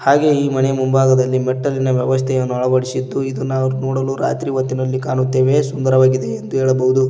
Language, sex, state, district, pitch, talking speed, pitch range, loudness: Kannada, male, Karnataka, Koppal, 130 Hz, 135 wpm, 130-135 Hz, -17 LUFS